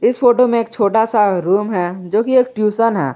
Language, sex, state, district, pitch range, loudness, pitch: Hindi, male, Jharkhand, Garhwa, 195-235 Hz, -15 LUFS, 220 Hz